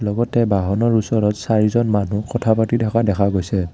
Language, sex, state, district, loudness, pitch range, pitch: Assamese, male, Assam, Kamrup Metropolitan, -18 LUFS, 100-115 Hz, 110 Hz